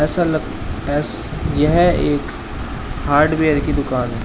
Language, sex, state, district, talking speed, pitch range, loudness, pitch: Hindi, male, Uttar Pradesh, Shamli, 125 wpm, 110-155 Hz, -18 LUFS, 145 Hz